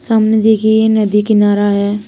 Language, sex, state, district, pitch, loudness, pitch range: Hindi, female, Uttar Pradesh, Shamli, 215 Hz, -12 LUFS, 205-220 Hz